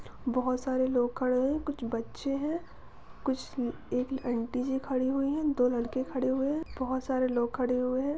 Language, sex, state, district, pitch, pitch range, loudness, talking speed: Hindi, female, Chhattisgarh, Bastar, 260 Hz, 250-270 Hz, -31 LUFS, 200 wpm